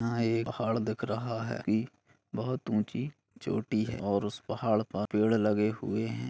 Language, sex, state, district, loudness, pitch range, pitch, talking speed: Hindi, male, Bihar, Bhagalpur, -31 LUFS, 105-115 Hz, 110 Hz, 180 wpm